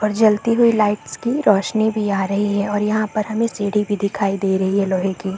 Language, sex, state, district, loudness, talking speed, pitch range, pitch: Hindi, female, Chhattisgarh, Bastar, -19 LUFS, 255 wpm, 195-215 Hz, 205 Hz